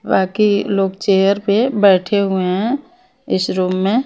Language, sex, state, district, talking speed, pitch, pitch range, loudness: Hindi, female, Maharashtra, Mumbai Suburban, 145 wpm, 200 Hz, 190-225 Hz, -16 LUFS